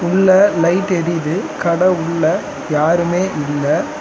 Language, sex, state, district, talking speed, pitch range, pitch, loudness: Tamil, male, Tamil Nadu, Chennai, 105 wpm, 165-185 Hz, 170 Hz, -16 LUFS